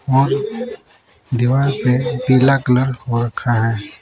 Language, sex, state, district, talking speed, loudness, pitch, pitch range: Hindi, male, Uttar Pradesh, Saharanpur, 120 wpm, -17 LUFS, 125 Hz, 120-135 Hz